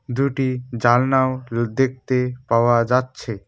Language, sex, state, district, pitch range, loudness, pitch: Bengali, male, West Bengal, Cooch Behar, 120-130 Hz, -20 LUFS, 125 Hz